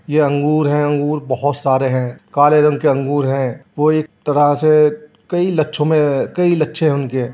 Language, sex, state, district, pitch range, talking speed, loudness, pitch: Hindi, male, Uttar Pradesh, Jyotiba Phule Nagar, 140-155 Hz, 180 wpm, -16 LUFS, 145 Hz